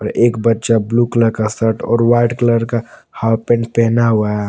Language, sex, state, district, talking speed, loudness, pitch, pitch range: Hindi, male, Jharkhand, Palamu, 200 wpm, -15 LUFS, 115 Hz, 115-120 Hz